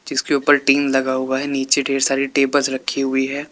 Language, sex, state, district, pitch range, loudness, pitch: Hindi, male, Uttar Pradesh, Lalitpur, 135-140 Hz, -18 LUFS, 135 Hz